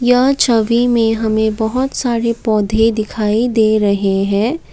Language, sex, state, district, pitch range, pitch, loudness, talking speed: Hindi, female, Assam, Kamrup Metropolitan, 215-240 Hz, 225 Hz, -15 LUFS, 140 wpm